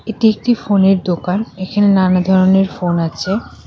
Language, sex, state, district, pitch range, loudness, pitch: Bengali, female, West Bengal, Cooch Behar, 185-205 Hz, -14 LUFS, 190 Hz